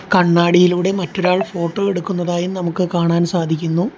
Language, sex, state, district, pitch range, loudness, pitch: Malayalam, male, Kerala, Kollam, 170-185 Hz, -17 LUFS, 180 Hz